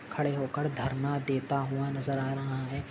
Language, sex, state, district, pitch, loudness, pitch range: Hindi, male, Maharashtra, Solapur, 135 Hz, -32 LUFS, 135-140 Hz